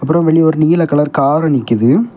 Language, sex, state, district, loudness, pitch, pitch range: Tamil, male, Tamil Nadu, Kanyakumari, -12 LUFS, 155 Hz, 145-165 Hz